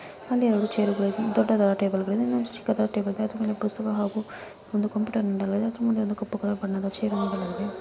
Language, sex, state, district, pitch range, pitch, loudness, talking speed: Kannada, female, Karnataka, Mysore, 200-220 Hz, 210 Hz, -26 LUFS, 200 wpm